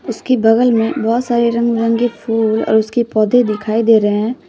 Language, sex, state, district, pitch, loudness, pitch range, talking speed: Hindi, female, Jharkhand, Deoghar, 230 Hz, -14 LUFS, 220-240 Hz, 200 wpm